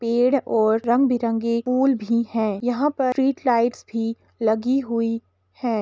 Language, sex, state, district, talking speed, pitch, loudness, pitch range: Hindi, female, Uttar Pradesh, Jalaun, 155 wpm, 235 Hz, -22 LUFS, 225-255 Hz